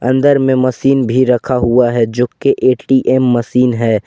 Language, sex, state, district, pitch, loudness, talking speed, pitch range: Hindi, male, Jharkhand, Garhwa, 125 Hz, -12 LUFS, 175 wpm, 120-130 Hz